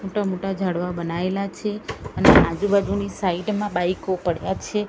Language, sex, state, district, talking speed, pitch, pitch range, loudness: Gujarati, female, Gujarat, Gandhinagar, 160 wpm, 195 Hz, 180-200 Hz, -22 LUFS